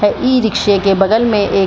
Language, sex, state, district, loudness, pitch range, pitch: Hindi, female, Bihar, Supaul, -13 LUFS, 195-225 Hz, 205 Hz